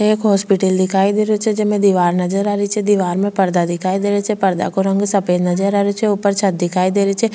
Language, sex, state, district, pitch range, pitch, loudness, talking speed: Rajasthani, female, Rajasthan, Churu, 185-205 Hz, 200 Hz, -16 LUFS, 270 wpm